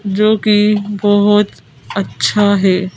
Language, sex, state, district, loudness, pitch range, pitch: Hindi, female, Madhya Pradesh, Bhopal, -13 LUFS, 200-210 Hz, 205 Hz